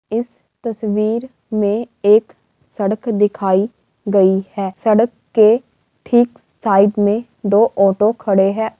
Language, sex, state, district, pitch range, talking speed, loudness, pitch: Hindi, female, Uttar Pradesh, Varanasi, 200-225 Hz, 115 wpm, -16 LUFS, 215 Hz